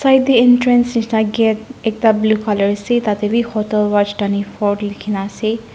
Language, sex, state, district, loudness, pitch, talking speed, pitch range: Nagamese, female, Nagaland, Dimapur, -16 LUFS, 215 Hz, 165 wpm, 205-235 Hz